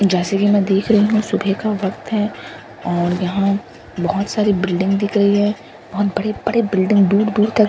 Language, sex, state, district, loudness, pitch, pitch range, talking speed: Hindi, female, Bihar, Katihar, -17 LUFS, 200 Hz, 195-210 Hz, 205 wpm